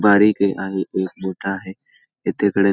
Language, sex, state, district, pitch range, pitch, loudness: Marathi, male, Maharashtra, Pune, 95-100 Hz, 95 Hz, -20 LUFS